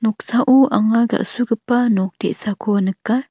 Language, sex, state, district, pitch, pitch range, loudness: Garo, female, Meghalaya, North Garo Hills, 220 Hz, 210-245 Hz, -18 LUFS